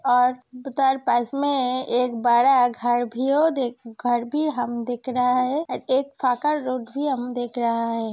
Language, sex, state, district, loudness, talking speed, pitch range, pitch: Hindi, female, Uttar Pradesh, Hamirpur, -23 LUFS, 155 wpm, 240-270 Hz, 250 Hz